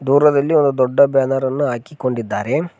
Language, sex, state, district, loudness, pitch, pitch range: Kannada, male, Karnataka, Koppal, -17 LUFS, 140 Hz, 130-145 Hz